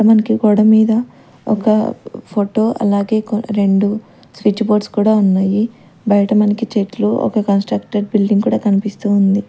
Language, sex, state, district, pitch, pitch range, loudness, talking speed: Telugu, female, Andhra Pradesh, Manyam, 210 Hz, 205-220 Hz, -15 LUFS, 125 wpm